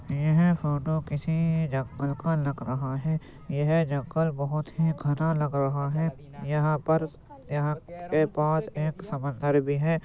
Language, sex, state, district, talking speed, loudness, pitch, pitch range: Hindi, male, Uttar Pradesh, Jyotiba Phule Nagar, 150 wpm, -27 LUFS, 150 Hz, 145-160 Hz